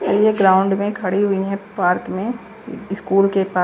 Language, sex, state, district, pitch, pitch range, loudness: Hindi, female, Chandigarh, Chandigarh, 195 Hz, 190-210 Hz, -18 LUFS